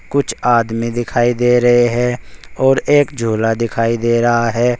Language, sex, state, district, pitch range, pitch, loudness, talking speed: Hindi, male, Uttar Pradesh, Saharanpur, 115-125 Hz, 120 Hz, -15 LUFS, 160 wpm